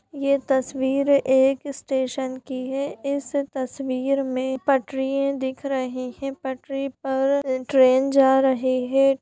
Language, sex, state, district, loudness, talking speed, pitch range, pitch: Hindi, female, Bihar, Gopalganj, -23 LUFS, 125 wpm, 260-275 Hz, 265 Hz